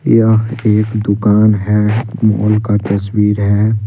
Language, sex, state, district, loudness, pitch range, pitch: Hindi, male, Jharkhand, Ranchi, -13 LUFS, 105-110 Hz, 105 Hz